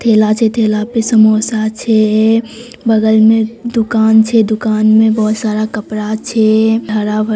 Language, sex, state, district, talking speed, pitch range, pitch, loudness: Maithili, female, Bihar, Samastipur, 140 wpm, 215-225 Hz, 220 Hz, -12 LUFS